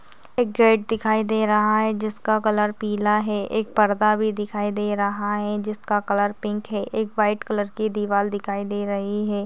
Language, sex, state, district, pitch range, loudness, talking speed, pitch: Hindi, female, Chhattisgarh, Raigarh, 205-215 Hz, -22 LUFS, 195 wpm, 210 Hz